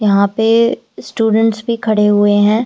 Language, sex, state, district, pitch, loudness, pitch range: Hindi, female, Delhi, New Delhi, 220 Hz, -13 LUFS, 205-225 Hz